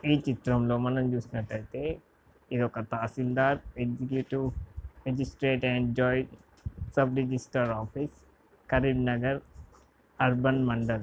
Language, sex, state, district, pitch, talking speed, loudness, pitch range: Telugu, male, Telangana, Karimnagar, 125 Hz, 90 wpm, -30 LUFS, 115-130 Hz